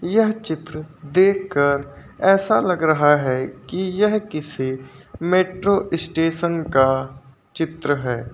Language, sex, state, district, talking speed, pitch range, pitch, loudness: Hindi, male, Uttar Pradesh, Lucknow, 115 wpm, 135-185 Hz, 160 Hz, -20 LUFS